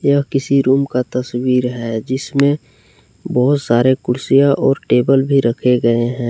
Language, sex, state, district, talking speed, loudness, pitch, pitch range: Hindi, male, Jharkhand, Palamu, 150 wpm, -15 LUFS, 130 Hz, 125-140 Hz